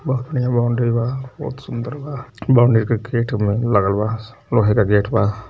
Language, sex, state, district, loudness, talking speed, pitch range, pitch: Hindi, male, Uttar Pradesh, Varanasi, -19 LUFS, 175 wpm, 110-125 Hz, 120 Hz